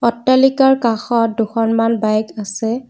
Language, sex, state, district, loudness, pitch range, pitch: Assamese, female, Assam, Kamrup Metropolitan, -16 LUFS, 225-245 Hz, 230 Hz